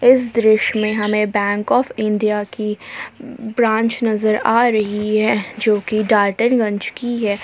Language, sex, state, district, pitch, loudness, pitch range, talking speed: Hindi, female, Jharkhand, Palamu, 215 Hz, -17 LUFS, 210-230 Hz, 155 wpm